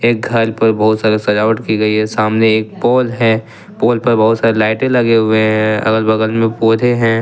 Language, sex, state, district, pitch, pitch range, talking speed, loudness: Hindi, male, Jharkhand, Ranchi, 110 Hz, 110-115 Hz, 215 wpm, -13 LUFS